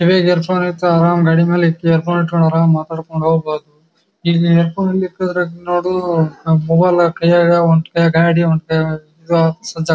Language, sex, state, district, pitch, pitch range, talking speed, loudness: Kannada, male, Karnataka, Bijapur, 170 Hz, 160-175 Hz, 165 wpm, -14 LUFS